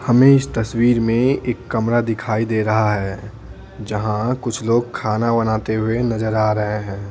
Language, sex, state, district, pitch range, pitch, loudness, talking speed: Hindi, male, Bihar, Patna, 105-120 Hz, 110 Hz, -19 LUFS, 170 wpm